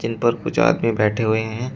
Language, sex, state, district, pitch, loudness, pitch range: Hindi, male, Uttar Pradesh, Shamli, 115 Hz, -20 LUFS, 110-115 Hz